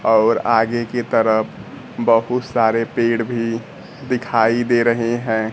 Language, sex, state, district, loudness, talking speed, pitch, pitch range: Hindi, male, Bihar, Kaimur, -18 LUFS, 130 wpm, 115 Hz, 115-120 Hz